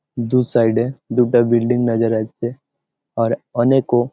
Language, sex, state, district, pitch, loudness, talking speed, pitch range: Bengali, male, West Bengal, Malda, 120 Hz, -18 LUFS, 130 wpm, 115-125 Hz